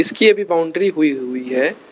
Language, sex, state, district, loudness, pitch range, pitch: Hindi, male, Arunachal Pradesh, Lower Dibang Valley, -17 LUFS, 130-205 Hz, 165 Hz